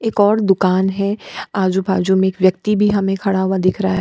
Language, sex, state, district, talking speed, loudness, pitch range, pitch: Hindi, female, Bihar, Kishanganj, 240 wpm, -16 LUFS, 190-200 Hz, 190 Hz